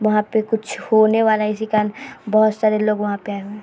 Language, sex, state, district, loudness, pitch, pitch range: Hindi, female, Bihar, Vaishali, -18 LUFS, 215 Hz, 210-220 Hz